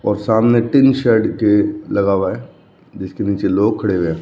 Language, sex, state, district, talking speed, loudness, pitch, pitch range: Hindi, male, Rajasthan, Bikaner, 185 wpm, -16 LUFS, 105 Hz, 100-115 Hz